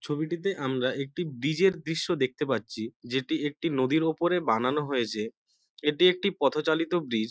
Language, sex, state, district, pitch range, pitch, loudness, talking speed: Bengali, male, West Bengal, North 24 Parganas, 130-170 Hz, 150 Hz, -28 LUFS, 165 wpm